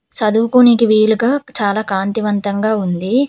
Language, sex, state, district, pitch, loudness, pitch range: Telugu, female, Telangana, Hyderabad, 220 Hz, -14 LUFS, 205-235 Hz